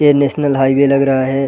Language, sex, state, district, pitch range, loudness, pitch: Hindi, male, Bihar, Gaya, 135-140 Hz, -13 LUFS, 140 Hz